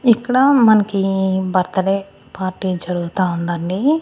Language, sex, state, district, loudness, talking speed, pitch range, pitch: Telugu, female, Andhra Pradesh, Annamaya, -17 LUFS, 90 wpm, 185-215 Hz, 190 Hz